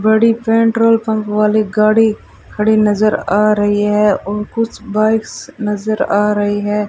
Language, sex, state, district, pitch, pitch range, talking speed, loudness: Hindi, female, Rajasthan, Bikaner, 215 Hz, 210-220 Hz, 150 wpm, -14 LUFS